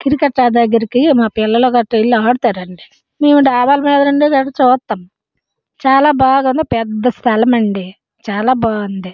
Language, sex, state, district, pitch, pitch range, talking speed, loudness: Telugu, female, Andhra Pradesh, Srikakulam, 245 Hz, 220-270 Hz, 105 wpm, -13 LUFS